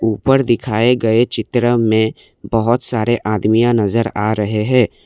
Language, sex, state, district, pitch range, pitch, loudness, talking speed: Hindi, male, Assam, Kamrup Metropolitan, 110-120 Hz, 115 Hz, -15 LUFS, 140 wpm